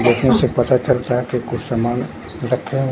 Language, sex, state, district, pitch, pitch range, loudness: Hindi, male, Bihar, Katihar, 125 Hz, 120-130 Hz, -19 LUFS